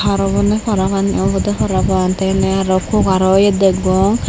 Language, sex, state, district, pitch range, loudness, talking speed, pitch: Chakma, female, Tripura, Unakoti, 190-200 Hz, -15 LUFS, 170 wpm, 195 Hz